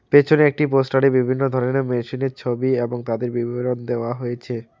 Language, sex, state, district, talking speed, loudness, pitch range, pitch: Bengali, male, West Bengal, Alipurduar, 150 wpm, -20 LUFS, 120-135 Hz, 125 Hz